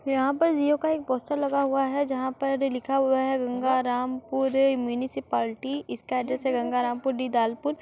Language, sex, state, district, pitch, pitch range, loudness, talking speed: Hindi, female, Uttar Pradesh, Muzaffarnagar, 265 Hz, 250-275 Hz, -26 LUFS, 175 wpm